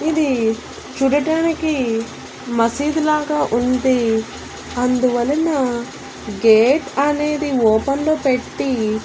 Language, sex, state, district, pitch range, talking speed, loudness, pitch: Telugu, female, Andhra Pradesh, Annamaya, 235-295 Hz, 75 wpm, -18 LUFS, 260 Hz